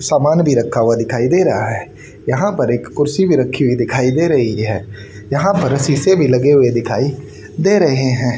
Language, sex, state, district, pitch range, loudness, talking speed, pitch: Hindi, male, Haryana, Charkhi Dadri, 120-150 Hz, -15 LUFS, 210 wpm, 130 Hz